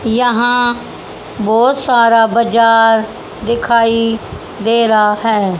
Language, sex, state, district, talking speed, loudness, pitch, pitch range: Hindi, female, Haryana, Charkhi Dadri, 85 wpm, -12 LUFS, 230 Hz, 225-235 Hz